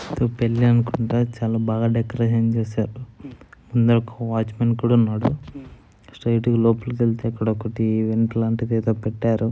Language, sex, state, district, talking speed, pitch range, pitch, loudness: Telugu, male, Andhra Pradesh, Anantapur, 130 wpm, 115-120 Hz, 115 Hz, -21 LUFS